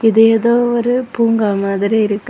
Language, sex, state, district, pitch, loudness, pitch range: Tamil, female, Tamil Nadu, Kanyakumari, 225 Hz, -14 LUFS, 210-235 Hz